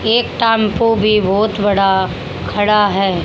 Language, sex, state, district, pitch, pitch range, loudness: Hindi, female, Haryana, Charkhi Dadri, 210 Hz, 195-220 Hz, -14 LUFS